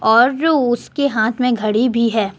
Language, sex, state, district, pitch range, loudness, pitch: Hindi, female, Jharkhand, Deoghar, 220-255 Hz, -16 LUFS, 240 Hz